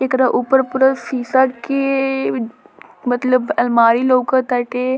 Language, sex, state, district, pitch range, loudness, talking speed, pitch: Bhojpuri, female, Bihar, Muzaffarpur, 245-270 Hz, -16 LUFS, 110 wpm, 255 Hz